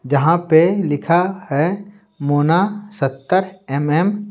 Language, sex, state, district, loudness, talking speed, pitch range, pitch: Hindi, male, Bihar, Patna, -17 LUFS, 110 wpm, 145-195 Hz, 170 Hz